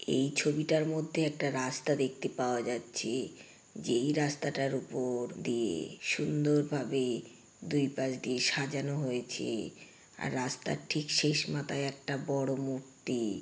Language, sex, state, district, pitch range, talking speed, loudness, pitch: Bengali, female, West Bengal, Jhargram, 125-150 Hz, 110 wpm, -33 LUFS, 135 Hz